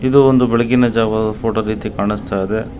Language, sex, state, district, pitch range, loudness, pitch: Kannada, male, Karnataka, Bangalore, 105-120 Hz, -16 LUFS, 110 Hz